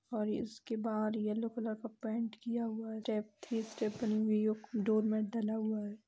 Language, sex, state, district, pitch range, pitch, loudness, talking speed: Hindi, female, Bihar, Gopalganj, 215-225 Hz, 220 Hz, -37 LUFS, 150 wpm